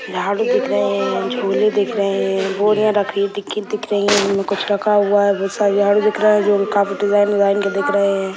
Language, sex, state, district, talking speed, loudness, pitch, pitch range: Hindi, female, Bihar, Sitamarhi, 250 wpm, -17 LUFS, 205 Hz, 200-210 Hz